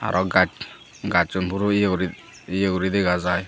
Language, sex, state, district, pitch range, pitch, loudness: Chakma, male, Tripura, Dhalai, 90-100 Hz, 95 Hz, -22 LUFS